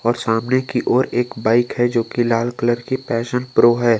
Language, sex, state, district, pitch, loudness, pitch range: Hindi, male, Jharkhand, Garhwa, 120 Hz, -18 LUFS, 115-125 Hz